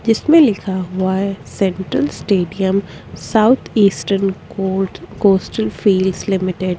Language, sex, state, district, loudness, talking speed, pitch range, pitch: Hindi, female, Chhattisgarh, Korba, -16 LUFS, 115 wpm, 185-210 Hz, 195 Hz